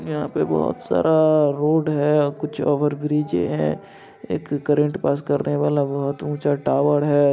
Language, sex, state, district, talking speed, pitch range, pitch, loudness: Hindi, male, Bihar, Lakhisarai, 155 wpm, 145-150 Hz, 145 Hz, -21 LUFS